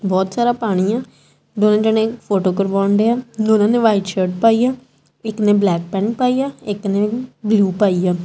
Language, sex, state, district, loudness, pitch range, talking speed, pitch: Punjabi, female, Punjab, Kapurthala, -17 LUFS, 195-230 Hz, 205 wpm, 210 Hz